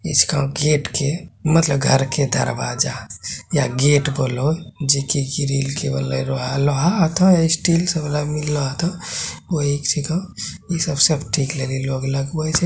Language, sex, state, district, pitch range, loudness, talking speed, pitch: Hindi, male, Bihar, Bhagalpur, 135-160 Hz, -19 LUFS, 170 wpm, 145 Hz